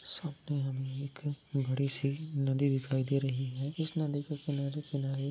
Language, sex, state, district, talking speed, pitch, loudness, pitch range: Hindi, male, Maharashtra, Nagpur, 160 wpm, 140 Hz, -34 LUFS, 135-145 Hz